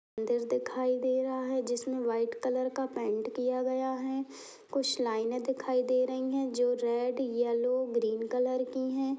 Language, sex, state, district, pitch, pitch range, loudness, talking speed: Hindi, female, Uttar Pradesh, Budaun, 255 Hz, 240-260 Hz, -31 LUFS, 170 wpm